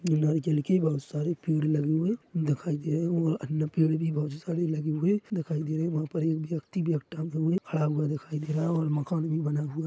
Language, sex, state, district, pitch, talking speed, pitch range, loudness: Hindi, male, Chhattisgarh, Korba, 160 Hz, 250 wpm, 150-165 Hz, -29 LUFS